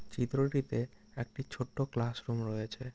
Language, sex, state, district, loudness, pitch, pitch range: Bengali, male, West Bengal, Dakshin Dinajpur, -36 LUFS, 120 Hz, 115-135 Hz